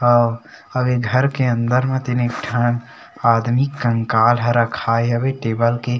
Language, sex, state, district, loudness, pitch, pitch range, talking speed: Chhattisgarhi, male, Chhattisgarh, Sarguja, -18 LUFS, 120 Hz, 115-125 Hz, 170 wpm